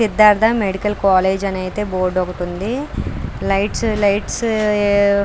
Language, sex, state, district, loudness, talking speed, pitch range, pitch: Telugu, female, Andhra Pradesh, Krishna, -17 LUFS, 125 wpm, 190-215 Hz, 200 Hz